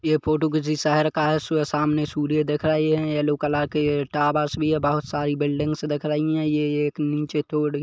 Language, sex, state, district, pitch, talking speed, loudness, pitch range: Hindi, male, Chhattisgarh, Kabirdham, 150 Hz, 215 wpm, -23 LUFS, 150-155 Hz